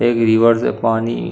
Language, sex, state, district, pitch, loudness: Hindi, male, Uttar Pradesh, Hamirpur, 115 Hz, -15 LUFS